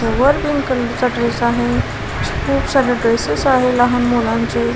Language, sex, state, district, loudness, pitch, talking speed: Marathi, female, Maharashtra, Washim, -16 LUFS, 230 Hz, 150 wpm